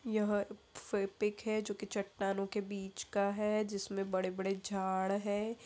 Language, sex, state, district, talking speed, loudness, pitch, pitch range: Hindi, female, Bihar, Saharsa, 150 wpm, -37 LUFS, 200 Hz, 195-210 Hz